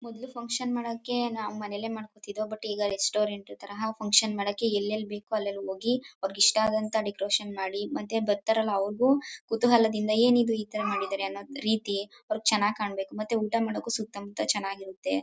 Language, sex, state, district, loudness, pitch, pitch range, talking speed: Kannada, female, Karnataka, Mysore, -28 LUFS, 215 Hz, 200-225 Hz, 160 wpm